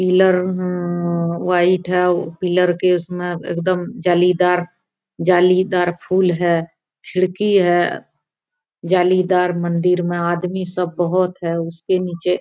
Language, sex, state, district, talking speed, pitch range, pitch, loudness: Maithili, female, Bihar, Araria, 115 wpm, 175-185 Hz, 180 Hz, -18 LUFS